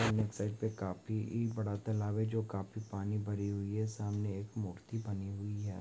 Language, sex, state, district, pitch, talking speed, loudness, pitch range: Hindi, male, Uttarakhand, Tehri Garhwal, 105 Hz, 195 wpm, -38 LUFS, 100-110 Hz